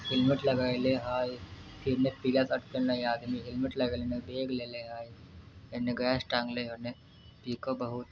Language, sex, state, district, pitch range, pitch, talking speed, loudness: Hindi, male, Bihar, Muzaffarpur, 120-130 Hz, 125 Hz, 125 wpm, -32 LUFS